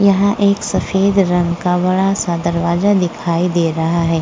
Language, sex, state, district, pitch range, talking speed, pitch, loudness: Hindi, female, Uttar Pradesh, Budaun, 170-195 Hz, 170 wpm, 180 Hz, -15 LUFS